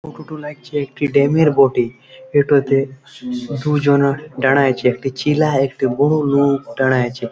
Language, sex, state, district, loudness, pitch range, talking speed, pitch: Bengali, male, West Bengal, Malda, -17 LUFS, 135-150 Hz, 115 wpm, 140 Hz